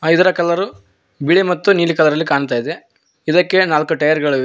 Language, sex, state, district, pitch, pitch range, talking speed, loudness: Kannada, male, Karnataka, Koppal, 160 Hz, 145-180 Hz, 160 wpm, -15 LUFS